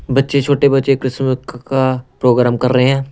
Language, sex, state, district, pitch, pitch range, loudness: Hindi, male, Punjab, Pathankot, 130 Hz, 125-135 Hz, -15 LUFS